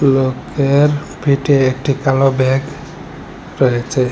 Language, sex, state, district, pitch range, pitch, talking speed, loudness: Bengali, male, Assam, Hailakandi, 130-145 Hz, 135 Hz, 85 wpm, -15 LUFS